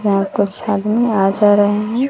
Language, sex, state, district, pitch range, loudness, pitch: Hindi, female, Bihar, West Champaran, 200-215 Hz, -15 LUFS, 205 Hz